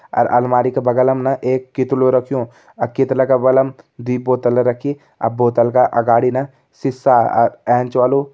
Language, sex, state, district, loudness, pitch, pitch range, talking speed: Kumaoni, male, Uttarakhand, Tehri Garhwal, -16 LUFS, 125 Hz, 125-130 Hz, 180 wpm